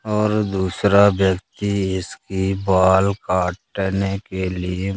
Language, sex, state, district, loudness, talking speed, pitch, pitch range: Hindi, male, Madhya Pradesh, Katni, -20 LUFS, 95 wpm, 95 Hz, 95-100 Hz